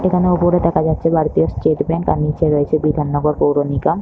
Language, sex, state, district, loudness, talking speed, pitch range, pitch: Bengali, female, West Bengal, North 24 Parganas, -16 LUFS, 195 wpm, 145-170 Hz, 155 Hz